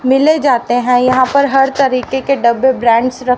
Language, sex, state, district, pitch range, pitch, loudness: Hindi, female, Haryana, Rohtak, 245-270 Hz, 255 Hz, -12 LUFS